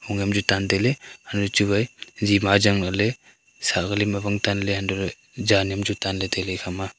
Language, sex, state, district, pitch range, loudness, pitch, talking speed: Wancho, male, Arunachal Pradesh, Longding, 95-105 Hz, -23 LUFS, 100 Hz, 170 wpm